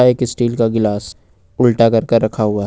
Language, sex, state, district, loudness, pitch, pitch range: Hindi, male, Jharkhand, Ranchi, -15 LUFS, 115 Hz, 105-120 Hz